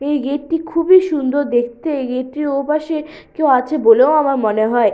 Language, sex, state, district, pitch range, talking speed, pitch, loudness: Bengali, female, West Bengal, Purulia, 260-315 Hz, 205 wpm, 290 Hz, -16 LUFS